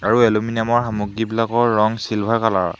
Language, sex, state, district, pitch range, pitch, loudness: Assamese, male, Assam, Hailakandi, 105-115 Hz, 115 Hz, -19 LUFS